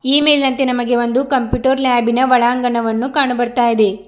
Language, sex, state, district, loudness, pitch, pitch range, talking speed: Kannada, female, Karnataka, Bidar, -14 LUFS, 250 Hz, 240-265 Hz, 115 wpm